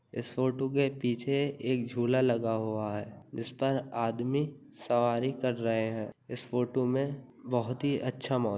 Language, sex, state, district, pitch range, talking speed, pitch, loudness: Hindi, male, Uttar Pradesh, Jyotiba Phule Nagar, 115-135 Hz, 170 wpm, 125 Hz, -31 LUFS